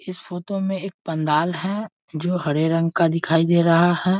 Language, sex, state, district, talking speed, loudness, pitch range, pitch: Hindi, male, Bihar, East Champaran, 200 wpm, -21 LUFS, 165-190 Hz, 175 Hz